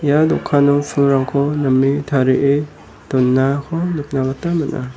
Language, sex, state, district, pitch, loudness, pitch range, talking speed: Garo, male, Meghalaya, West Garo Hills, 140 Hz, -17 LUFS, 130-150 Hz, 95 wpm